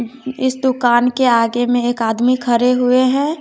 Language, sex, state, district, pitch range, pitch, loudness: Hindi, female, Bihar, West Champaran, 240-260 Hz, 250 Hz, -15 LUFS